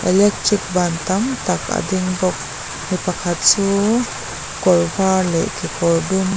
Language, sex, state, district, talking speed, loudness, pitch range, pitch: Mizo, female, Mizoram, Aizawl, 150 wpm, -18 LUFS, 175-195 Hz, 185 Hz